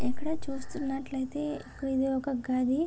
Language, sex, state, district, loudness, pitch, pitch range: Telugu, female, Andhra Pradesh, Srikakulam, -32 LUFS, 270 Hz, 260-285 Hz